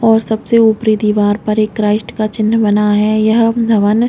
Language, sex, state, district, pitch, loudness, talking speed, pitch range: Hindi, female, Chhattisgarh, Raigarh, 215 Hz, -13 LUFS, 190 wpm, 210-225 Hz